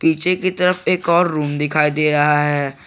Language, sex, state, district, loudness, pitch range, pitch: Hindi, male, Jharkhand, Garhwa, -17 LUFS, 150-180 Hz, 155 Hz